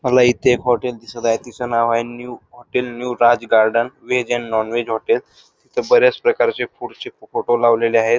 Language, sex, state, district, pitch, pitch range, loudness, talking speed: Marathi, male, Maharashtra, Dhule, 120 Hz, 115-125 Hz, -18 LUFS, 185 wpm